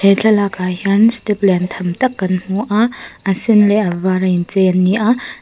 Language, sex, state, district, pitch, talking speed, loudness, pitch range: Mizo, female, Mizoram, Aizawl, 195 Hz, 210 wpm, -15 LUFS, 185-215 Hz